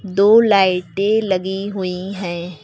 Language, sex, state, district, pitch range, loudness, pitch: Hindi, female, Uttar Pradesh, Lucknow, 180-200 Hz, -17 LUFS, 190 Hz